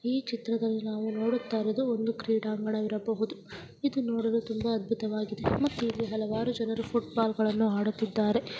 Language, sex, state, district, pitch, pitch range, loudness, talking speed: Kannada, female, Karnataka, Chamarajanagar, 225 Hz, 215-230 Hz, -30 LUFS, 130 wpm